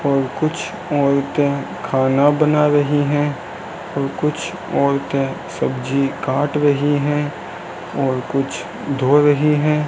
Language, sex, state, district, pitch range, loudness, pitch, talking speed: Hindi, male, Rajasthan, Bikaner, 135-150 Hz, -18 LUFS, 145 Hz, 115 wpm